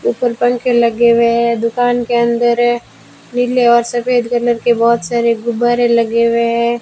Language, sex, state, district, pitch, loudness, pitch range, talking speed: Hindi, female, Rajasthan, Bikaner, 235 Hz, -13 LUFS, 235-240 Hz, 175 wpm